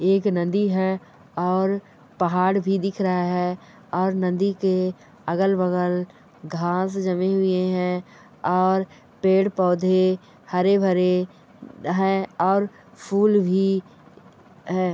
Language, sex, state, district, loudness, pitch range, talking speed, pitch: Hindi, female, Bihar, Bhagalpur, -22 LUFS, 180-195 Hz, 110 wpm, 185 Hz